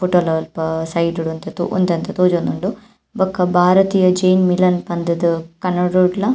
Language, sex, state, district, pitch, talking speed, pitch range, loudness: Tulu, female, Karnataka, Dakshina Kannada, 180 Hz, 115 wpm, 170-185 Hz, -17 LUFS